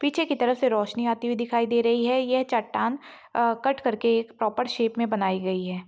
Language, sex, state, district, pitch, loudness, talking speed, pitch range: Hindi, female, Chhattisgarh, Rajnandgaon, 235 Hz, -25 LUFS, 255 wpm, 225-255 Hz